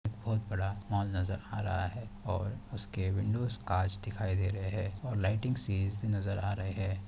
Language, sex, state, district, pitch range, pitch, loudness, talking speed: Hindi, male, Chhattisgarh, Bastar, 95-110 Hz, 100 Hz, -35 LUFS, 185 wpm